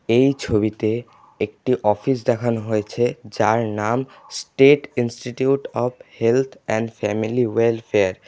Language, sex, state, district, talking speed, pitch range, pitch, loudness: Bengali, male, West Bengal, Alipurduar, 115 wpm, 110-125 Hz, 115 Hz, -21 LUFS